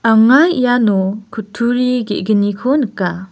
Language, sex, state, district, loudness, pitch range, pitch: Garo, female, Meghalaya, West Garo Hills, -14 LUFS, 205-250 Hz, 220 Hz